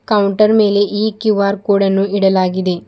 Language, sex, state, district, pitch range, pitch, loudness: Kannada, female, Karnataka, Bidar, 195-210 Hz, 200 Hz, -14 LUFS